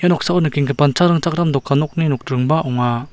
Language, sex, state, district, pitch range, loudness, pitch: Garo, male, Meghalaya, South Garo Hills, 135-170 Hz, -17 LUFS, 150 Hz